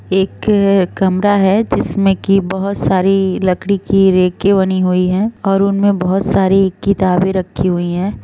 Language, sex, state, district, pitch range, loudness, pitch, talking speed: Hindi, female, Bihar, Sitamarhi, 185-200 Hz, -14 LUFS, 190 Hz, 160 wpm